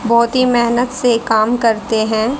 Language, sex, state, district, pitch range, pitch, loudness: Hindi, female, Haryana, Charkhi Dadri, 220-245 Hz, 235 Hz, -14 LUFS